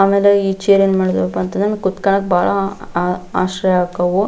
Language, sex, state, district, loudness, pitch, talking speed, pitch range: Kannada, female, Karnataka, Belgaum, -16 LUFS, 190 Hz, 140 wpm, 180-195 Hz